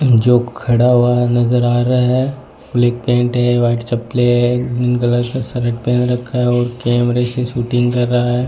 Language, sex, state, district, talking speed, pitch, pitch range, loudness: Hindi, male, Rajasthan, Bikaner, 185 wpm, 120 Hz, 120-125 Hz, -15 LUFS